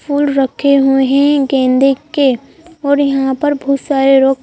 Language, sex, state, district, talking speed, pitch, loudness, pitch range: Hindi, female, Madhya Pradesh, Bhopal, 165 wpm, 275 Hz, -13 LUFS, 270-285 Hz